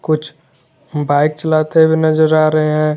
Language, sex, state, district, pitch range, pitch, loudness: Hindi, male, Jharkhand, Garhwa, 150-155 Hz, 155 Hz, -14 LUFS